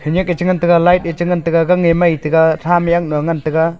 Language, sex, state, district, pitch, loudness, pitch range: Wancho, male, Arunachal Pradesh, Longding, 170 Hz, -14 LUFS, 160-175 Hz